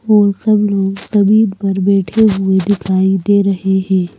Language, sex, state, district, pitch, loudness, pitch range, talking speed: Hindi, female, Madhya Pradesh, Bhopal, 195 Hz, -13 LUFS, 190-205 Hz, 160 wpm